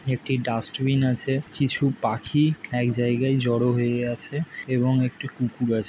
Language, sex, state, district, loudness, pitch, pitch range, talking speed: Bengali, male, West Bengal, North 24 Parganas, -24 LUFS, 125 Hz, 120-135 Hz, 155 wpm